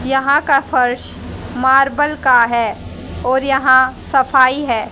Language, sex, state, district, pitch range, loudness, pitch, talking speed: Hindi, female, Haryana, Rohtak, 250-275 Hz, -14 LUFS, 260 Hz, 120 wpm